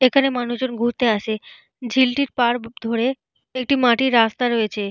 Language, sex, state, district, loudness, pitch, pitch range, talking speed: Bengali, female, Jharkhand, Jamtara, -20 LUFS, 240 Hz, 230-260 Hz, 135 wpm